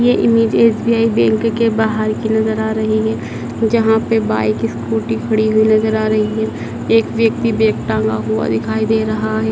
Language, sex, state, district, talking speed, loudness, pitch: Hindi, male, Madhya Pradesh, Dhar, 190 wpm, -15 LUFS, 215 Hz